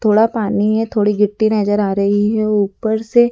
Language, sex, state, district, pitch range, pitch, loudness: Hindi, female, Madhya Pradesh, Dhar, 205-220 Hz, 210 Hz, -16 LUFS